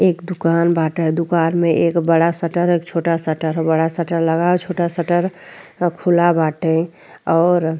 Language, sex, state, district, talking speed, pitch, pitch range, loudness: Bhojpuri, female, Uttar Pradesh, Deoria, 160 wpm, 170 Hz, 165-175 Hz, -17 LUFS